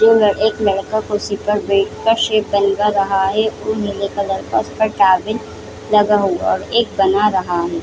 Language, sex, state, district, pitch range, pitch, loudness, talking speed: Hindi, female, Chhattisgarh, Bilaspur, 195-215 Hz, 205 Hz, -16 LUFS, 200 wpm